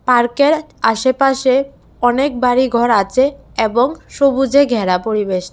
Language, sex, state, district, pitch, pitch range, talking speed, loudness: Bengali, female, Tripura, West Tripura, 255 Hz, 230-275 Hz, 100 wpm, -15 LUFS